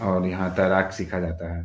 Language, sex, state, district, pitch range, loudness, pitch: Hindi, male, Bihar, Gaya, 90-95 Hz, -24 LUFS, 95 Hz